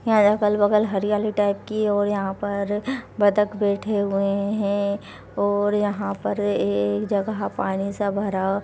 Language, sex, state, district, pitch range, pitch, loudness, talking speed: Hindi, female, Uttar Pradesh, Varanasi, 200-210 Hz, 205 Hz, -23 LUFS, 145 wpm